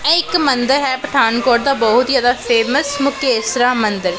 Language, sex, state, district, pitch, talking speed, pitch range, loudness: Punjabi, female, Punjab, Pathankot, 255 Hz, 155 wpm, 235-280 Hz, -15 LUFS